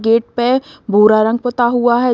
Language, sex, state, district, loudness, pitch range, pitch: Hindi, female, Uttar Pradesh, Gorakhpur, -14 LUFS, 225-245 Hz, 240 Hz